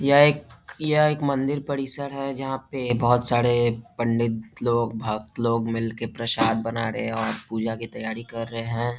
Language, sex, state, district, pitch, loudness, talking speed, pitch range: Hindi, male, Bihar, Jahanabad, 115 Hz, -24 LUFS, 195 wpm, 115-135 Hz